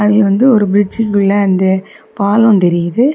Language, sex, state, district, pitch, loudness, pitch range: Tamil, female, Tamil Nadu, Kanyakumari, 205 Hz, -12 LUFS, 195-215 Hz